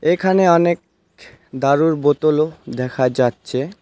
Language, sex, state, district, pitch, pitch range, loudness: Bengali, male, West Bengal, Alipurduar, 155 Hz, 130-170 Hz, -17 LUFS